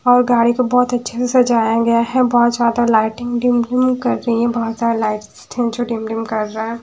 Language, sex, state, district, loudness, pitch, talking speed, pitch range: Hindi, female, Haryana, Charkhi Dadri, -16 LUFS, 235 Hz, 230 wpm, 230-245 Hz